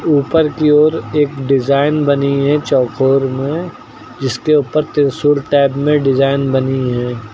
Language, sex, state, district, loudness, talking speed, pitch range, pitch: Hindi, male, Uttar Pradesh, Lucknow, -14 LUFS, 140 wpm, 135-150 Hz, 140 Hz